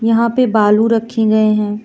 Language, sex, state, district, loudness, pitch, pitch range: Hindi, female, Jharkhand, Deoghar, -13 LUFS, 220 Hz, 215-230 Hz